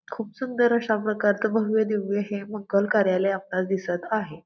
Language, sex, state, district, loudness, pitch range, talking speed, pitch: Marathi, female, Maharashtra, Pune, -24 LUFS, 195-220 Hz, 160 wpm, 205 Hz